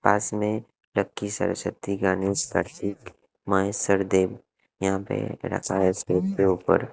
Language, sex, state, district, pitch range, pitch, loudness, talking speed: Hindi, male, Punjab, Kapurthala, 95-105 Hz, 100 Hz, -26 LUFS, 140 wpm